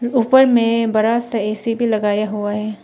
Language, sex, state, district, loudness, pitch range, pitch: Hindi, female, Arunachal Pradesh, Papum Pare, -17 LUFS, 215-235 Hz, 225 Hz